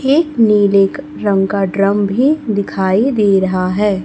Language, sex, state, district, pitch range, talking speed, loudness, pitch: Hindi, male, Chhattisgarh, Raipur, 195-220 Hz, 150 wpm, -14 LUFS, 200 Hz